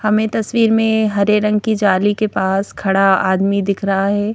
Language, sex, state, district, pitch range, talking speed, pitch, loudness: Hindi, female, Madhya Pradesh, Bhopal, 195-215 Hz, 195 wpm, 205 Hz, -16 LUFS